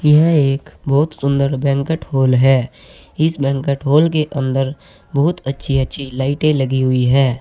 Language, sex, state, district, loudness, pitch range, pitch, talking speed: Hindi, male, Uttar Pradesh, Saharanpur, -16 LUFS, 135-150 Hz, 140 Hz, 155 wpm